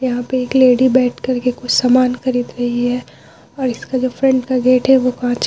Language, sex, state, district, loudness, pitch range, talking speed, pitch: Hindi, female, Bihar, Vaishali, -15 LUFS, 245-255 Hz, 230 wpm, 255 Hz